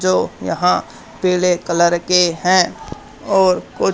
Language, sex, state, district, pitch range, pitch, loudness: Hindi, male, Haryana, Charkhi Dadri, 175-185 Hz, 180 Hz, -16 LUFS